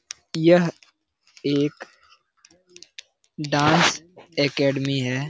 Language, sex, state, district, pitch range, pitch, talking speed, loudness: Hindi, male, Bihar, Lakhisarai, 140-175 Hz, 155 Hz, 70 wpm, -21 LUFS